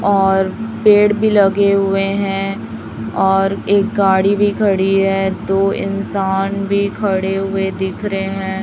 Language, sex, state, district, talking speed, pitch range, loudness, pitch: Hindi, female, Chhattisgarh, Raipur, 140 wpm, 195-200 Hz, -16 LUFS, 195 Hz